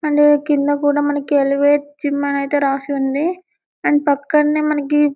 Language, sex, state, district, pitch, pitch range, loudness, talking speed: Telugu, female, Telangana, Karimnagar, 290 Hz, 285-295 Hz, -17 LUFS, 140 wpm